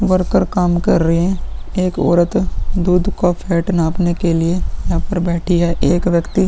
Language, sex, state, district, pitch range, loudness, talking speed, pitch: Hindi, male, Uttar Pradesh, Muzaffarnagar, 170-185 Hz, -16 LUFS, 150 wpm, 175 Hz